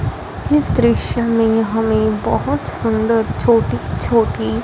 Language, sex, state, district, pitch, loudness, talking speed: Hindi, female, Punjab, Fazilka, 215 Hz, -16 LUFS, 115 wpm